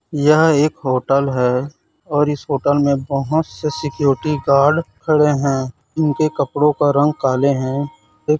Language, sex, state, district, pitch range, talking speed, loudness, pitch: Hindi, male, Chhattisgarh, Raipur, 135-150 Hz, 145 wpm, -17 LUFS, 145 Hz